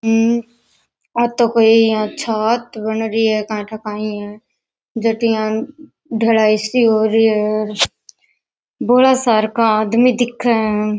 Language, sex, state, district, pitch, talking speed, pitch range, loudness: Rajasthani, female, Rajasthan, Nagaur, 225 Hz, 130 wpm, 215-235 Hz, -16 LUFS